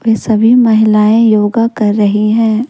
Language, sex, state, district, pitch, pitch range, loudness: Hindi, female, Jharkhand, Deoghar, 220 Hz, 210-230 Hz, -10 LUFS